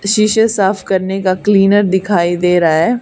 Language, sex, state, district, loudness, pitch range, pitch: Hindi, female, Haryana, Charkhi Dadri, -13 LUFS, 185-210 Hz, 195 Hz